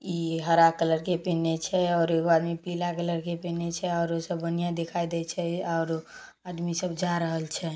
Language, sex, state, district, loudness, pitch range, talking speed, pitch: Maithili, female, Bihar, Samastipur, -28 LUFS, 165-175 Hz, 180 wpm, 170 Hz